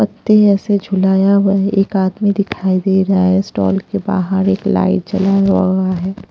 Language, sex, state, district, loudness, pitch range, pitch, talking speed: Hindi, female, Punjab, Pathankot, -14 LUFS, 190-200 Hz, 195 Hz, 180 wpm